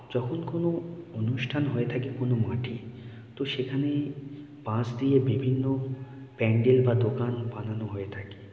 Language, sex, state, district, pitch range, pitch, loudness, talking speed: Bengali, male, West Bengal, North 24 Parganas, 120-135 Hz, 125 Hz, -28 LUFS, 125 wpm